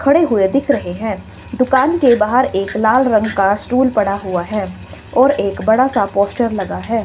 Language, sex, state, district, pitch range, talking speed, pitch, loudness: Hindi, female, Himachal Pradesh, Shimla, 200-255 Hz, 195 wpm, 220 Hz, -15 LUFS